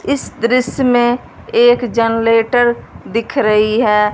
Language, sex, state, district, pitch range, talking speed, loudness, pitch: Hindi, female, Punjab, Fazilka, 225-245 Hz, 115 wpm, -14 LUFS, 235 Hz